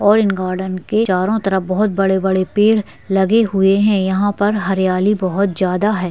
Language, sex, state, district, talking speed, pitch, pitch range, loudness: Hindi, female, Bihar, Madhepura, 175 wpm, 195 Hz, 190-210 Hz, -16 LUFS